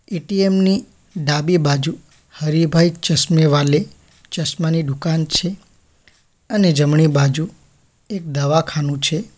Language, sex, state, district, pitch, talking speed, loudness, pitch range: Gujarati, male, Gujarat, Valsad, 160 Hz, 100 wpm, -17 LUFS, 145-175 Hz